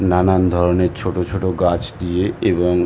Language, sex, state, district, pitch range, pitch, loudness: Bengali, male, West Bengal, North 24 Parganas, 90-95 Hz, 90 Hz, -18 LUFS